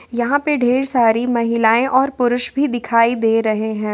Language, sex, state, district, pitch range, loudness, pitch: Hindi, female, Jharkhand, Ranchi, 225-260 Hz, -16 LUFS, 240 Hz